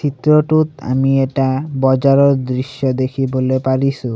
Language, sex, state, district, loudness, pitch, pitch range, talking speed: Assamese, male, Assam, Sonitpur, -15 LUFS, 135 Hz, 130-140 Hz, 100 wpm